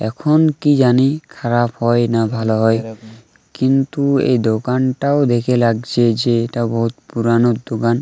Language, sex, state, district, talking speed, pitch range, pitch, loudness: Bengali, male, Jharkhand, Jamtara, 140 wpm, 115-130 Hz, 120 Hz, -16 LUFS